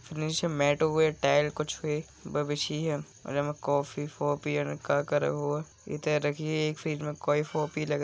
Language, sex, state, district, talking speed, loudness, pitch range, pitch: Bundeli, male, Uttar Pradesh, Budaun, 125 wpm, -30 LUFS, 145-155 Hz, 150 Hz